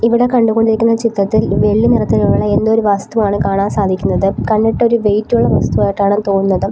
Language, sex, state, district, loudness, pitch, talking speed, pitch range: Malayalam, female, Kerala, Kollam, -13 LUFS, 215 Hz, 135 wpm, 200-230 Hz